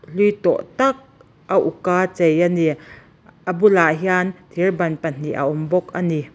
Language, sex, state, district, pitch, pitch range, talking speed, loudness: Mizo, female, Mizoram, Aizawl, 175 Hz, 160-185 Hz, 190 wpm, -19 LUFS